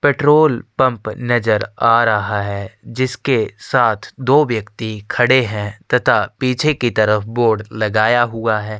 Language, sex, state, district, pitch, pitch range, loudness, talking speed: Hindi, male, Chhattisgarh, Sukma, 115 Hz, 110-125 Hz, -16 LUFS, 135 wpm